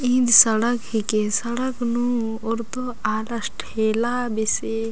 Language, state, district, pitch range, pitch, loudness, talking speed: Kurukh, Chhattisgarh, Jashpur, 220-245 Hz, 230 Hz, -21 LUFS, 110 wpm